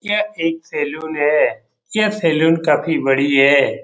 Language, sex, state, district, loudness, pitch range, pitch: Hindi, male, Bihar, Jamui, -17 LUFS, 145-165 Hz, 160 Hz